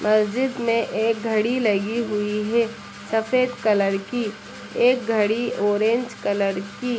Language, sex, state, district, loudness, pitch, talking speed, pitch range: Hindi, female, Bihar, Samastipur, -22 LUFS, 225 Hz, 130 wpm, 210-240 Hz